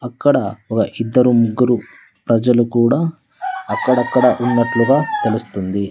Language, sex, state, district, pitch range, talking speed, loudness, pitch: Telugu, male, Andhra Pradesh, Sri Satya Sai, 115-135 Hz, 80 wpm, -16 LUFS, 120 Hz